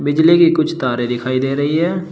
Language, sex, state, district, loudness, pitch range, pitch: Hindi, male, Uttar Pradesh, Shamli, -15 LUFS, 130-165 Hz, 150 Hz